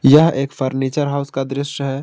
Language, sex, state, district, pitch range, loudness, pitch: Hindi, male, Jharkhand, Garhwa, 135-140 Hz, -18 LUFS, 140 Hz